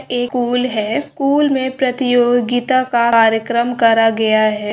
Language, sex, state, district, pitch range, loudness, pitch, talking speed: Hindi, female, Andhra Pradesh, Srikakulam, 225-255 Hz, -15 LUFS, 245 Hz, 140 wpm